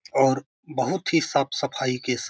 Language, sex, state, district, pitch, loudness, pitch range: Hindi, male, Bihar, Saran, 135 Hz, -25 LUFS, 130-145 Hz